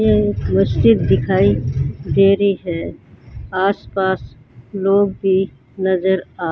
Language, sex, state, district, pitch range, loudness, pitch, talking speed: Hindi, male, Rajasthan, Bikaner, 115-190 Hz, -17 LUFS, 165 Hz, 120 wpm